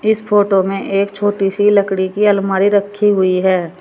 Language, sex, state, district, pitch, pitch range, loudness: Hindi, female, Uttar Pradesh, Shamli, 200 Hz, 190-205 Hz, -14 LUFS